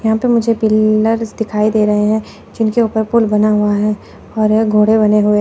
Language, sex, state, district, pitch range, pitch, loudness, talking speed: Hindi, female, Chandigarh, Chandigarh, 210-225 Hz, 215 Hz, -14 LUFS, 210 wpm